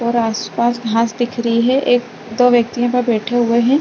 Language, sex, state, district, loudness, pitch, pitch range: Hindi, female, Chhattisgarh, Bastar, -16 LUFS, 235 Hz, 230-245 Hz